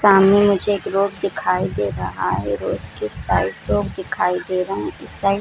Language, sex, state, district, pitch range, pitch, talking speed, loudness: Hindi, female, Jharkhand, Jamtara, 185-200 Hz, 195 Hz, 200 wpm, -20 LUFS